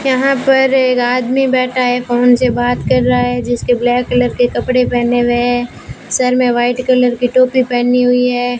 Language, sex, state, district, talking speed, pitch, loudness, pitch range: Hindi, female, Rajasthan, Bikaner, 195 wpm, 245 Hz, -13 LUFS, 245-255 Hz